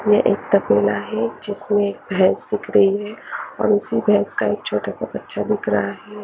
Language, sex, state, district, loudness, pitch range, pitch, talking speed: Hindi, female, Chandigarh, Chandigarh, -20 LUFS, 205-215 Hz, 210 Hz, 165 wpm